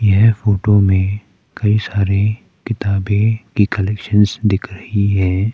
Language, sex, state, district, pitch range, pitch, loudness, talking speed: Hindi, male, Arunachal Pradesh, Papum Pare, 100-105 Hz, 105 Hz, -16 LUFS, 120 wpm